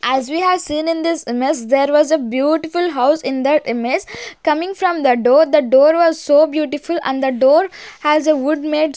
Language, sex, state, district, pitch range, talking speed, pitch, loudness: English, female, Maharashtra, Gondia, 270-325 Hz, 215 wpm, 300 Hz, -16 LUFS